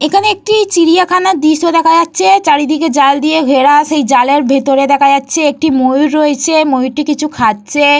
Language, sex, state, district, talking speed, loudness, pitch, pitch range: Bengali, female, Jharkhand, Jamtara, 155 wpm, -10 LUFS, 300 Hz, 280-330 Hz